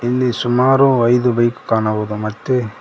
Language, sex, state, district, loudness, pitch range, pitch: Kannada, male, Karnataka, Koppal, -16 LUFS, 110-125 Hz, 120 Hz